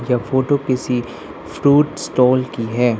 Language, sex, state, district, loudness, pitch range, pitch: Hindi, male, Arunachal Pradesh, Lower Dibang Valley, -17 LUFS, 120-130 Hz, 125 Hz